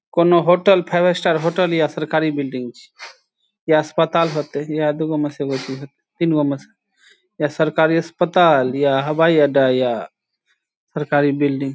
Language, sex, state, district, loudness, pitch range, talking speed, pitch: Maithili, male, Bihar, Saharsa, -18 LUFS, 140-170 Hz, 175 wpm, 155 Hz